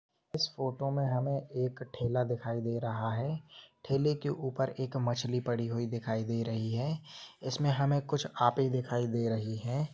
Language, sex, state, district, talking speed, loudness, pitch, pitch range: Hindi, male, Jharkhand, Jamtara, 175 wpm, -33 LUFS, 125 Hz, 115-140 Hz